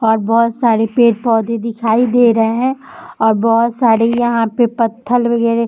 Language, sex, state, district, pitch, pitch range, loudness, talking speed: Hindi, female, Bihar, Samastipur, 230 Hz, 225-240 Hz, -14 LUFS, 170 wpm